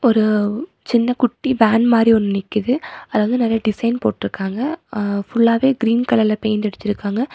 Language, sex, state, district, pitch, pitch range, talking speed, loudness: Tamil, female, Tamil Nadu, Nilgiris, 225 Hz, 210-245 Hz, 145 wpm, -18 LUFS